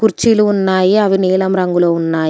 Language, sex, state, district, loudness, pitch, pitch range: Telugu, female, Telangana, Komaram Bheem, -13 LUFS, 190 Hz, 175-205 Hz